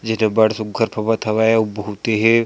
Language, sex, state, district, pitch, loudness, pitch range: Chhattisgarhi, male, Chhattisgarh, Sarguja, 110 Hz, -18 LUFS, 110-115 Hz